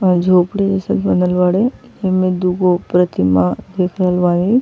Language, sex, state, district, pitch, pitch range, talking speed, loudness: Bhojpuri, female, Uttar Pradesh, Ghazipur, 180 Hz, 180-190 Hz, 145 wpm, -15 LUFS